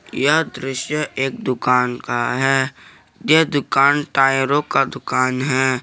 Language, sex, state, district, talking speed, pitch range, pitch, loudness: Hindi, male, Jharkhand, Garhwa, 125 wpm, 130-140 Hz, 135 Hz, -18 LUFS